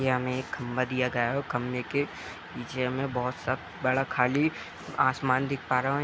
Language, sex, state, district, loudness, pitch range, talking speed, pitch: Hindi, male, Bihar, Sitamarhi, -29 LUFS, 125-135 Hz, 210 wpm, 130 Hz